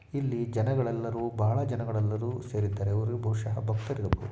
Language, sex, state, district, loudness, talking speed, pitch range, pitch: Kannada, male, Karnataka, Shimoga, -30 LUFS, 95 wpm, 105-120 Hz, 115 Hz